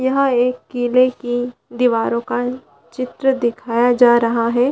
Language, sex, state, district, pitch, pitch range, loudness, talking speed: Hindi, female, Chhattisgarh, Bilaspur, 245 Hz, 235-255 Hz, -17 LUFS, 150 wpm